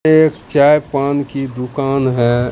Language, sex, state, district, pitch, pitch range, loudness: Hindi, male, Bihar, Katihar, 140 Hz, 125-145 Hz, -15 LUFS